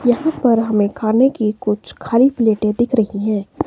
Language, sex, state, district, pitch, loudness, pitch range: Hindi, female, Himachal Pradesh, Shimla, 225 Hz, -17 LUFS, 210-250 Hz